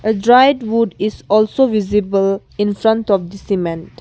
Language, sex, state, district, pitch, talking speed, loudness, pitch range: English, female, Arunachal Pradesh, Longding, 210 Hz, 150 wpm, -15 LUFS, 195-225 Hz